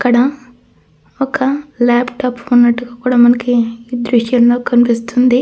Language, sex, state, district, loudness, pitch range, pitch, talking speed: Telugu, female, Andhra Pradesh, Krishna, -13 LUFS, 240-255 Hz, 245 Hz, 90 wpm